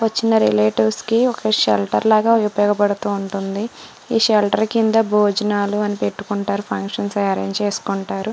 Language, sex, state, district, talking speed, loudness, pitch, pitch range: Telugu, female, Andhra Pradesh, Srikakulam, 135 wpm, -18 LUFS, 205 Hz, 195-220 Hz